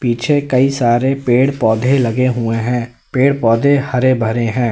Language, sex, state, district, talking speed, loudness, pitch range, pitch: Hindi, male, Uttar Pradesh, Lalitpur, 165 wpm, -14 LUFS, 120-135 Hz, 125 Hz